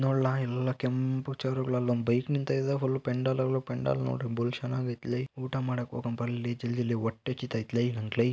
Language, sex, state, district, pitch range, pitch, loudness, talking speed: Kannada, male, Karnataka, Mysore, 120-130 Hz, 125 Hz, -31 LUFS, 165 wpm